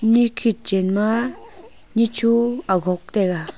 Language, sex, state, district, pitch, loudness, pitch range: Wancho, female, Arunachal Pradesh, Longding, 220 Hz, -19 LUFS, 190-230 Hz